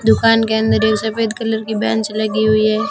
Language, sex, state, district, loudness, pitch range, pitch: Hindi, female, Rajasthan, Jaisalmer, -16 LUFS, 215-225 Hz, 220 Hz